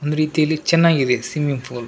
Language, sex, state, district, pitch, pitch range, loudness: Kannada, male, Karnataka, Raichur, 150 Hz, 125-155 Hz, -18 LUFS